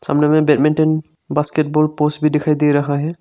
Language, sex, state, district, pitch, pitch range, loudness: Hindi, male, Arunachal Pradesh, Lower Dibang Valley, 150 Hz, 150-155 Hz, -15 LUFS